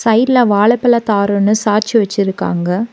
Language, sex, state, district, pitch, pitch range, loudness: Tamil, female, Tamil Nadu, Nilgiris, 210 Hz, 200-230 Hz, -13 LUFS